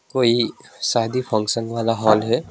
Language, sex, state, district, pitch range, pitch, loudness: Hindi, male, West Bengal, Alipurduar, 110-120 Hz, 115 Hz, -20 LUFS